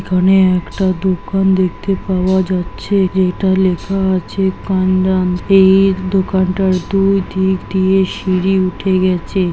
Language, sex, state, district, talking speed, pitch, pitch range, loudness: Bengali, male, West Bengal, Jhargram, 115 wpm, 190 Hz, 185-190 Hz, -14 LUFS